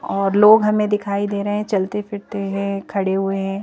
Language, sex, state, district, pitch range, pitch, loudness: Hindi, female, Madhya Pradesh, Bhopal, 195-210 Hz, 200 Hz, -19 LUFS